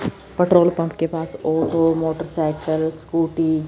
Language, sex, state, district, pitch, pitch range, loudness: Hindi, female, Chandigarh, Chandigarh, 165 Hz, 160-165 Hz, -20 LUFS